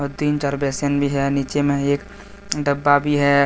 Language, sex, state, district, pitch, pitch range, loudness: Hindi, male, Jharkhand, Deoghar, 145 Hz, 140-145 Hz, -20 LUFS